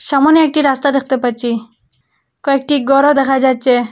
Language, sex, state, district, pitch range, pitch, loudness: Bengali, female, Assam, Hailakandi, 250-285 Hz, 275 Hz, -13 LUFS